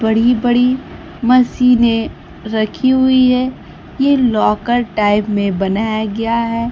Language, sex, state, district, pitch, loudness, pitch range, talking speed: Hindi, female, Bihar, Kaimur, 235 Hz, -14 LUFS, 215-250 Hz, 115 wpm